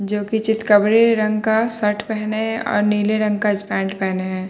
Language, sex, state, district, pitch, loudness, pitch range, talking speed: Hindi, male, Uttar Pradesh, Muzaffarnagar, 215 Hz, -18 LUFS, 205-220 Hz, 200 wpm